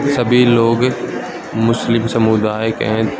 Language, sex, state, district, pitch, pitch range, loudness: Hindi, male, Arunachal Pradesh, Lower Dibang Valley, 115 Hz, 110-120 Hz, -15 LUFS